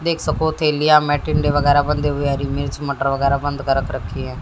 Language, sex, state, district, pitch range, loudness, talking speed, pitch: Hindi, female, Haryana, Jhajjar, 140-150 Hz, -18 LUFS, 190 wpm, 145 Hz